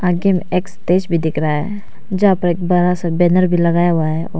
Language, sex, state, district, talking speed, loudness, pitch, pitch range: Hindi, female, Arunachal Pradesh, Papum Pare, 270 wpm, -16 LUFS, 175 Hz, 170-185 Hz